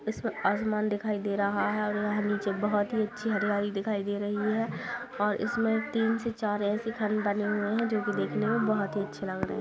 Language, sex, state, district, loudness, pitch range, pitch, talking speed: Hindi, female, Bihar, Purnia, -30 LUFS, 205-220 Hz, 210 Hz, 230 wpm